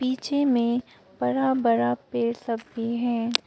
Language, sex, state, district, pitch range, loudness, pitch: Hindi, female, Arunachal Pradesh, Papum Pare, 230-255 Hz, -25 LUFS, 235 Hz